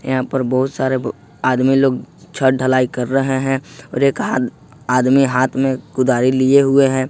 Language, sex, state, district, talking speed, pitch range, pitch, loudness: Hindi, male, Jharkhand, Ranchi, 170 wpm, 130-135 Hz, 130 Hz, -16 LUFS